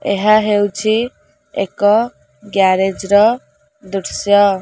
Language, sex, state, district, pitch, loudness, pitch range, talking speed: Odia, female, Odisha, Khordha, 205 Hz, -15 LUFS, 195-215 Hz, 80 wpm